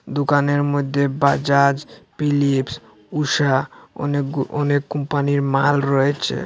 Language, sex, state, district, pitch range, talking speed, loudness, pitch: Bengali, male, Assam, Hailakandi, 140-145 Hz, 110 wpm, -19 LUFS, 140 Hz